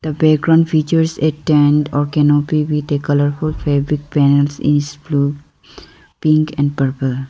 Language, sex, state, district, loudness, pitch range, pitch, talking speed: English, female, Arunachal Pradesh, Lower Dibang Valley, -15 LUFS, 145-155 Hz, 145 Hz, 140 wpm